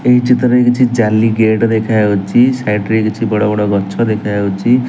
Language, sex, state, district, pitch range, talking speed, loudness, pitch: Odia, male, Odisha, Nuapada, 105-125 Hz, 160 wpm, -13 LUFS, 110 Hz